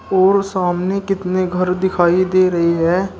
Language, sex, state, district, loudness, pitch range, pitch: Hindi, male, Uttar Pradesh, Shamli, -16 LUFS, 180-190 Hz, 185 Hz